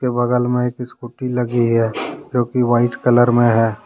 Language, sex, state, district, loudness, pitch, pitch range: Hindi, male, Jharkhand, Deoghar, -17 LUFS, 120 Hz, 120-125 Hz